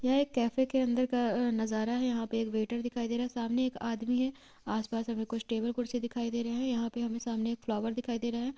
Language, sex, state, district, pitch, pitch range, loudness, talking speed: Maithili, female, Bihar, Purnia, 235 Hz, 230-245 Hz, -33 LUFS, 285 wpm